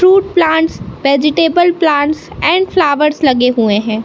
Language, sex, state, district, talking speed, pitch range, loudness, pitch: Hindi, male, Madhya Pradesh, Katni, 135 wpm, 275-350 Hz, -12 LUFS, 310 Hz